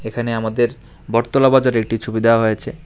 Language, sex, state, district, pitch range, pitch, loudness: Bengali, male, Tripura, West Tripura, 115-125 Hz, 115 Hz, -17 LUFS